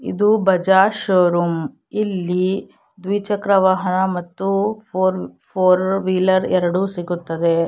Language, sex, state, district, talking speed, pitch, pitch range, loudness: Kannada, female, Karnataka, Shimoga, 85 wpm, 185 Hz, 175-195 Hz, -18 LUFS